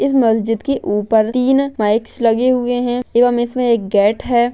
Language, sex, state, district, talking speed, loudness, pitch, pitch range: Hindi, female, Maharashtra, Aurangabad, 170 wpm, -16 LUFS, 240 Hz, 225-250 Hz